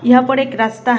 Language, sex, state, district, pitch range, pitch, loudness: Hindi, female, Tripura, West Tripura, 225-265 Hz, 245 Hz, -15 LUFS